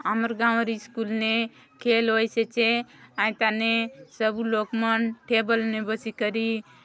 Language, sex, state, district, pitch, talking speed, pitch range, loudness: Halbi, female, Chhattisgarh, Bastar, 225 Hz, 130 wpm, 220-230 Hz, -25 LUFS